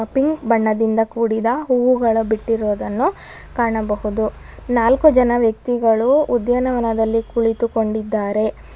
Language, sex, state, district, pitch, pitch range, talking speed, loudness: Kannada, female, Karnataka, Bangalore, 230 Hz, 220-245 Hz, 75 wpm, -18 LUFS